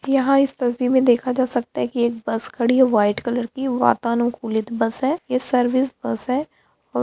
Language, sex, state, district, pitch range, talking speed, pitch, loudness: Hindi, female, Bihar, Lakhisarai, 235-260 Hz, 215 wpm, 245 Hz, -20 LUFS